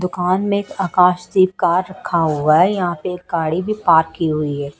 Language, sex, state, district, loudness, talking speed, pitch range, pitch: Hindi, female, Bihar, Kaimur, -17 LUFS, 215 wpm, 160-185 Hz, 180 Hz